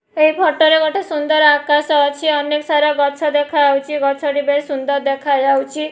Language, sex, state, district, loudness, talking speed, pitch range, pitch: Odia, female, Odisha, Nuapada, -15 LUFS, 150 wpm, 285-305 Hz, 295 Hz